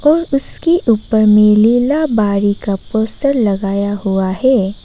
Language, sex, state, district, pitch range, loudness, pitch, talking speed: Hindi, female, Arunachal Pradesh, Papum Pare, 200-265 Hz, -14 LUFS, 220 Hz, 125 wpm